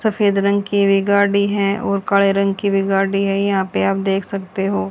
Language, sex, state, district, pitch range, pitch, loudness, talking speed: Hindi, female, Haryana, Charkhi Dadri, 195-200 Hz, 195 Hz, -17 LUFS, 230 wpm